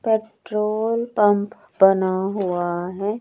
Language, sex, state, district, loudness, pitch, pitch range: Hindi, female, Chandigarh, Chandigarh, -21 LUFS, 205 Hz, 190-215 Hz